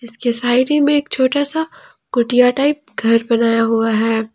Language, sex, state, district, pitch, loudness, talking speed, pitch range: Hindi, female, Jharkhand, Palamu, 245 Hz, -16 LUFS, 180 wpm, 230-285 Hz